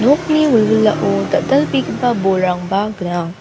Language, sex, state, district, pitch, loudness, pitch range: Garo, female, Meghalaya, South Garo Hills, 215 Hz, -15 LUFS, 185-265 Hz